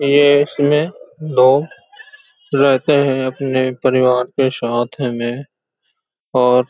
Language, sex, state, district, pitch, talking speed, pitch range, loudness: Hindi, male, Uttar Pradesh, Hamirpur, 135 Hz, 105 wpm, 125-145 Hz, -16 LUFS